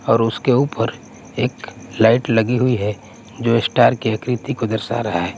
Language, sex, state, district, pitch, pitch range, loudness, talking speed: Hindi, male, Punjab, Kapurthala, 115 Hz, 110-125 Hz, -18 LUFS, 180 wpm